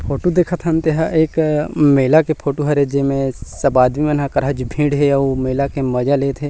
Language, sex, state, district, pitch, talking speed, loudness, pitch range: Chhattisgarhi, male, Chhattisgarh, Rajnandgaon, 140 Hz, 210 wpm, -16 LUFS, 135-155 Hz